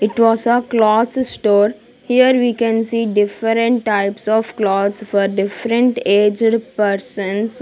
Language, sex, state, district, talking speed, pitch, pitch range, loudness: English, female, Punjab, Kapurthala, 135 wpm, 225 Hz, 205-235 Hz, -16 LUFS